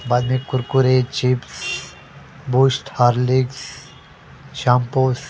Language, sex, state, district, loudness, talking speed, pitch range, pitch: Hindi, male, Delhi, New Delhi, -19 LUFS, 90 wpm, 125-135 Hz, 130 Hz